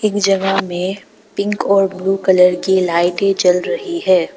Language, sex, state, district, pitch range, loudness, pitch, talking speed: Hindi, female, Arunachal Pradesh, Papum Pare, 180-200 Hz, -15 LUFS, 195 Hz, 165 wpm